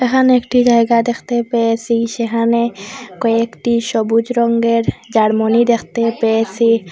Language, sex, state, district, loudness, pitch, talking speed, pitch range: Bengali, female, Assam, Hailakandi, -15 LUFS, 230 Hz, 105 wpm, 230-235 Hz